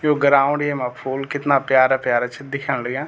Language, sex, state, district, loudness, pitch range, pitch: Garhwali, male, Uttarakhand, Tehri Garhwal, -19 LUFS, 130-140 Hz, 135 Hz